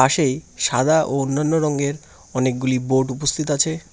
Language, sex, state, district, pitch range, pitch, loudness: Bengali, male, West Bengal, Cooch Behar, 130-155 Hz, 140 Hz, -20 LUFS